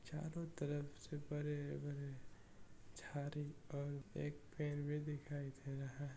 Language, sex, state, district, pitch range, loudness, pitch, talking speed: Hindi, male, Bihar, East Champaran, 135-150 Hz, -47 LUFS, 145 Hz, 115 wpm